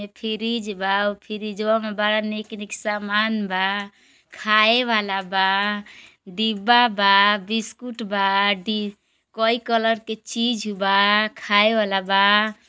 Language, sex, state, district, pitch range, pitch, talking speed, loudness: Bhojpuri, female, Uttar Pradesh, Gorakhpur, 200-220 Hz, 210 Hz, 130 wpm, -20 LUFS